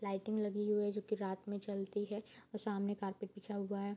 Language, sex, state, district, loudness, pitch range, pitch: Hindi, female, Bihar, Bhagalpur, -40 LUFS, 200-210 Hz, 205 Hz